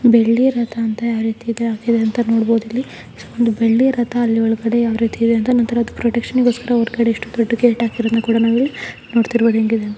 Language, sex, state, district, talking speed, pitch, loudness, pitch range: Kannada, female, Karnataka, Dakshina Kannada, 175 wpm, 230 Hz, -17 LUFS, 225-235 Hz